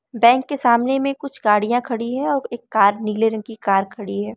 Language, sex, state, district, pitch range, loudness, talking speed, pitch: Hindi, female, Arunachal Pradesh, Lower Dibang Valley, 210-260 Hz, -19 LUFS, 235 wpm, 235 Hz